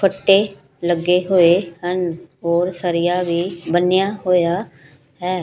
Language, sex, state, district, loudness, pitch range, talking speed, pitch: Punjabi, female, Punjab, Pathankot, -18 LUFS, 170-185 Hz, 110 wpm, 175 Hz